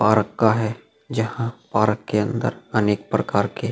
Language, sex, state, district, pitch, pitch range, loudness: Hindi, male, Uttar Pradesh, Jalaun, 110 Hz, 105-115 Hz, -22 LUFS